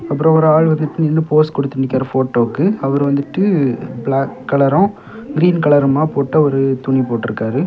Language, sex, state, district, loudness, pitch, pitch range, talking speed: Tamil, male, Tamil Nadu, Kanyakumari, -15 LUFS, 140 Hz, 135-155 Hz, 155 wpm